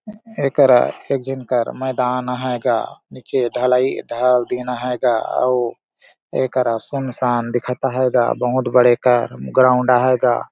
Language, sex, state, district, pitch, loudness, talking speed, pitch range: Surgujia, male, Chhattisgarh, Sarguja, 125 Hz, -18 LUFS, 145 wpm, 125-130 Hz